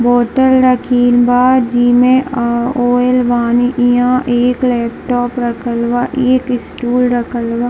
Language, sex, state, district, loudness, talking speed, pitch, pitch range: Hindi, female, Bihar, Darbhanga, -13 LUFS, 130 wpm, 245 Hz, 240-250 Hz